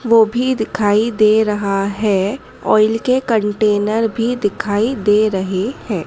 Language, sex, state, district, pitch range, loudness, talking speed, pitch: Hindi, female, Madhya Pradesh, Dhar, 205-225 Hz, -16 LUFS, 140 wpm, 215 Hz